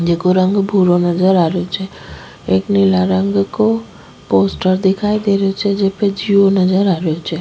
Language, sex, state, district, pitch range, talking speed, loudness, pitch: Rajasthani, female, Rajasthan, Nagaur, 160-195 Hz, 180 wpm, -15 LUFS, 185 Hz